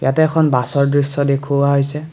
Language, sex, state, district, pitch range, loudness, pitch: Assamese, male, Assam, Kamrup Metropolitan, 140-150 Hz, -16 LUFS, 140 Hz